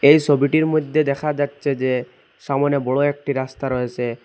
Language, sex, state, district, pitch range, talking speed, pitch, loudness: Bengali, male, Assam, Hailakandi, 130-145 Hz, 155 wpm, 140 Hz, -20 LUFS